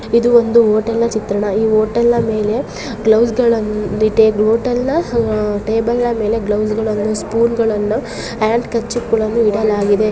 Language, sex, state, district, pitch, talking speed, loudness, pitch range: Kannada, female, Karnataka, Gulbarga, 220 Hz, 90 wpm, -15 LUFS, 215-235 Hz